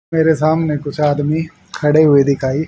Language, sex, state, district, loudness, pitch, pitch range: Hindi, male, Haryana, Rohtak, -15 LUFS, 150 Hz, 145-160 Hz